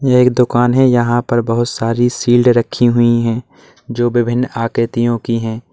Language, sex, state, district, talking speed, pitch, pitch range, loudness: Hindi, male, Uttar Pradesh, Lalitpur, 180 wpm, 120 Hz, 115-120 Hz, -14 LUFS